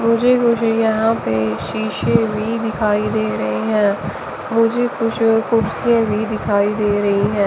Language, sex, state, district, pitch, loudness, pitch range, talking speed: Hindi, male, Chandigarh, Chandigarh, 220 Hz, -17 LUFS, 205-230 Hz, 145 wpm